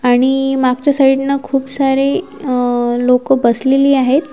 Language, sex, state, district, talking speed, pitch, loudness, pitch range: Marathi, female, Maharashtra, Washim, 110 wpm, 270 Hz, -14 LUFS, 250-275 Hz